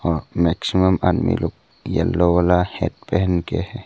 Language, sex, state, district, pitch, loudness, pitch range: Hindi, male, Arunachal Pradesh, Papum Pare, 90 Hz, -20 LUFS, 85-95 Hz